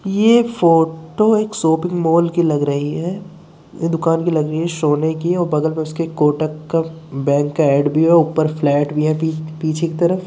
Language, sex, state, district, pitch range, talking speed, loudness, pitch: Hindi, male, Uttar Pradesh, Muzaffarnagar, 155-170 Hz, 185 wpm, -17 LUFS, 160 Hz